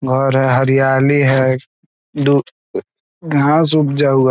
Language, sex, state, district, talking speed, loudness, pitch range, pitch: Hindi, male, Bihar, East Champaran, 125 wpm, -14 LUFS, 135-145 Hz, 135 Hz